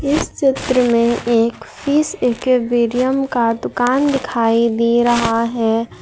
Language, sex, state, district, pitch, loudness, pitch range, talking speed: Hindi, female, Jharkhand, Garhwa, 240 Hz, -16 LUFS, 230-260 Hz, 120 wpm